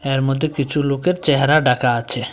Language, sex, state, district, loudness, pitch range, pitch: Bengali, male, Tripura, Dhalai, -17 LUFS, 130-155 Hz, 140 Hz